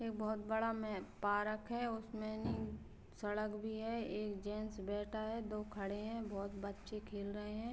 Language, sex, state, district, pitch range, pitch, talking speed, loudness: Hindi, female, Uttar Pradesh, Varanasi, 200-220 Hz, 210 Hz, 180 wpm, -43 LUFS